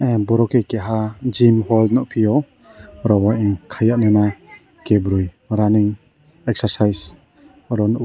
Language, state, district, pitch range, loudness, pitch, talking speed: Kokborok, Tripura, West Tripura, 105-120 Hz, -18 LUFS, 110 Hz, 125 wpm